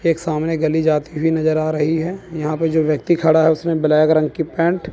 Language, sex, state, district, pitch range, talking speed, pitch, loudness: Hindi, male, Chandigarh, Chandigarh, 155-165 Hz, 255 wpm, 160 Hz, -17 LUFS